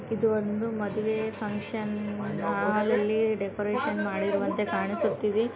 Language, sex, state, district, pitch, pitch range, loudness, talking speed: Kannada, female, Karnataka, Gulbarga, 215 Hz, 205-220 Hz, -28 LUFS, 95 wpm